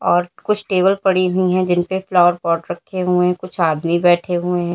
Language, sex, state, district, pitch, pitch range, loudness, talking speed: Hindi, female, Uttar Pradesh, Lalitpur, 180 Hz, 175-185 Hz, -17 LUFS, 200 wpm